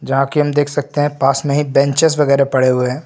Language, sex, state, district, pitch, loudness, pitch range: Hindi, male, Uttar Pradesh, Lucknow, 140 Hz, -15 LUFS, 135-145 Hz